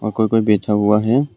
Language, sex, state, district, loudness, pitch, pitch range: Hindi, male, Arunachal Pradesh, Longding, -16 LUFS, 110 Hz, 105-115 Hz